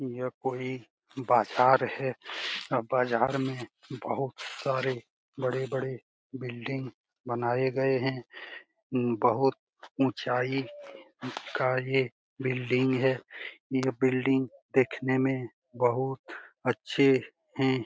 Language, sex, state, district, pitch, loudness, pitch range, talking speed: Hindi, male, Bihar, Jamui, 130 Hz, -29 LUFS, 125-135 Hz, 85 wpm